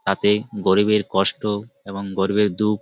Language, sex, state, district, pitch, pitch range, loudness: Bengali, male, West Bengal, Malda, 105 Hz, 100-105 Hz, -21 LUFS